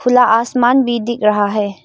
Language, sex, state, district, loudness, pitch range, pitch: Hindi, female, Arunachal Pradesh, Lower Dibang Valley, -14 LUFS, 210-250 Hz, 235 Hz